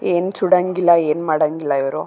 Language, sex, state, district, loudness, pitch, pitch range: Kannada, female, Karnataka, Raichur, -17 LUFS, 170 Hz, 155-185 Hz